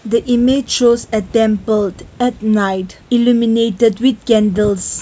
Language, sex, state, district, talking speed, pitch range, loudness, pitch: English, female, Nagaland, Kohima, 130 wpm, 210-240 Hz, -15 LUFS, 225 Hz